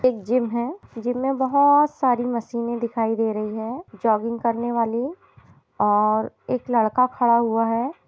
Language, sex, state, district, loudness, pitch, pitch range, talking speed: Hindi, female, Bihar, East Champaran, -22 LUFS, 235 Hz, 225-255 Hz, 155 wpm